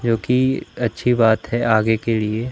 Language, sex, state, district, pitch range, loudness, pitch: Hindi, male, Madhya Pradesh, Umaria, 110-120 Hz, -19 LUFS, 115 Hz